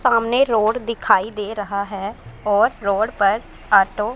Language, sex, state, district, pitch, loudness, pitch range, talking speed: Hindi, female, Punjab, Pathankot, 210 Hz, -19 LUFS, 200-225 Hz, 160 wpm